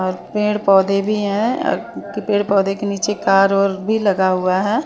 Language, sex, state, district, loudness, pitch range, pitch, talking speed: Hindi, female, Chandigarh, Chandigarh, -17 LUFS, 195-210 Hz, 200 Hz, 185 wpm